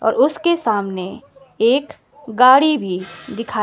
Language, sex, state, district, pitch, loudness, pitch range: Hindi, female, Himachal Pradesh, Shimla, 250 Hz, -16 LUFS, 215-280 Hz